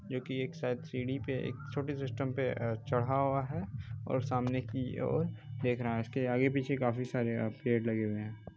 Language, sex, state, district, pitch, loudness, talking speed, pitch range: Hindi, male, Bihar, Bhagalpur, 125 Hz, -35 LUFS, 195 wpm, 120-135 Hz